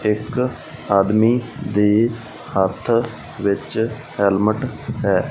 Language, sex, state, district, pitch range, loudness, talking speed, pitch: Punjabi, male, Punjab, Fazilka, 100-120 Hz, -20 LUFS, 80 wpm, 110 Hz